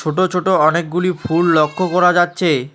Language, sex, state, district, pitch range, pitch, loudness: Bengali, male, West Bengal, Alipurduar, 155-180 Hz, 175 Hz, -15 LUFS